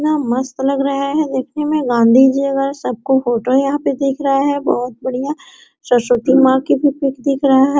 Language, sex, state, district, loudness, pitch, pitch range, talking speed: Hindi, female, Bihar, Araria, -15 LUFS, 275 Hz, 260-280 Hz, 215 wpm